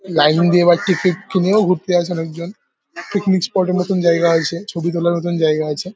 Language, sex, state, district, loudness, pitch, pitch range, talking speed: Bengali, male, West Bengal, Paschim Medinipur, -16 LUFS, 175 Hz, 170-185 Hz, 210 wpm